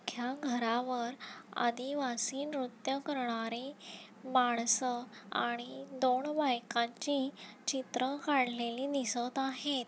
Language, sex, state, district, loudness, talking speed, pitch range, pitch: Marathi, female, Maharashtra, Nagpur, -35 LUFS, 80 wpm, 235-270 Hz, 255 Hz